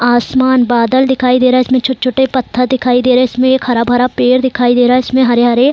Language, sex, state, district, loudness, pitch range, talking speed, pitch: Hindi, female, Bihar, Saran, -11 LUFS, 245-260 Hz, 230 wpm, 255 Hz